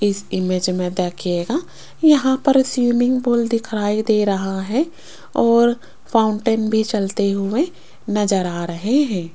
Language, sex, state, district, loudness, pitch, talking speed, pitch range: Hindi, female, Rajasthan, Jaipur, -19 LUFS, 215 Hz, 135 wpm, 190-245 Hz